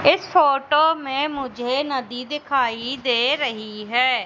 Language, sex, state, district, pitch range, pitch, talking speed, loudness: Hindi, female, Madhya Pradesh, Katni, 245-285 Hz, 265 Hz, 125 wpm, -21 LUFS